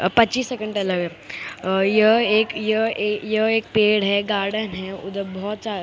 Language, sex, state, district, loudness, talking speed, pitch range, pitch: Hindi, female, Maharashtra, Mumbai Suburban, -21 LUFS, 195 wpm, 195-220 Hz, 210 Hz